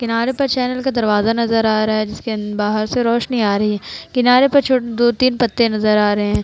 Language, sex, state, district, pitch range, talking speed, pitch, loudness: Hindi, female, Bihar, Vaishali, 215-250 Hz, 240 wpm, 230 Hz, -16 LUFS